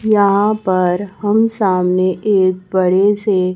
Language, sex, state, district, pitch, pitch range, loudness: Hindi, male, Chhattisgarh, Raipur, 195 Hz, 185-205 Hz, -15 LUFS